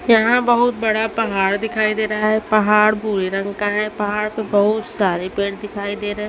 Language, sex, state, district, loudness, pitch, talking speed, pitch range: Hindi, female, Chhattisgarh, Raipur, -18 LUFS, 210 Hz, 200 wpm, 205-220 Hz